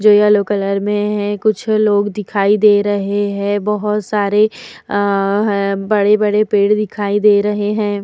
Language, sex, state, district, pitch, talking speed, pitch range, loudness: Hindi, female, Uttar Pradesh, Hamirpur, 205 Hz, 155 wpm, 205-210 Hz, -15 LUFS